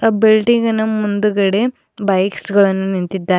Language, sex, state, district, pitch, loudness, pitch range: Kannada, female, Karnataka, Bidar, 205 Hz, -15 LUFS, 195-220 Hz